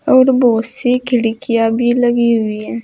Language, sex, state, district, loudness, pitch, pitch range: Hindi, female, Uttar Pradesh, Saharanpur, -14 LUFS, 240 Hz, 225-245 Hz